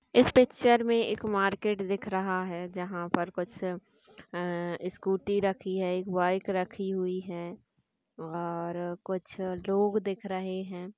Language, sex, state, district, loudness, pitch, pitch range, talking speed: Marathi, female, Maharashtra, Sindhudurg, -30 LUFS, 190 Hz, 180-200 Hz, 140 wpm